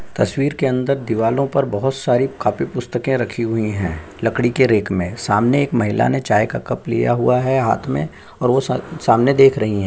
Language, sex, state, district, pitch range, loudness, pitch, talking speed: Hindi, male, Chhattisgarh, Sukma, 110-135 Hz, -18 LUFS, 120 Hz, 210 wpm